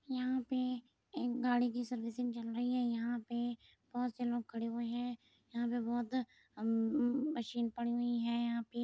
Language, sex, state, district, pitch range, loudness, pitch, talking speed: Hindi, female, Uttar Pradesh, Muzaffarnagar, 235-245 Hz, -38 LUFS, 240 Hz, 185 wpm